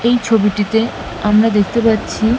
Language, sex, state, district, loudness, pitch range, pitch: Bengali, female, West Bengal, Malda, -15 LUFS, 210-230 Hz, 225 Hz